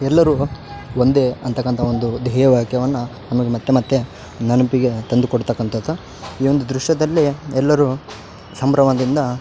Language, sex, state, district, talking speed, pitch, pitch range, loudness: Kannada, male, Karnataka, Raichur, 110 wpm, 130 Hz, 120-140 Hz, -18 LUFS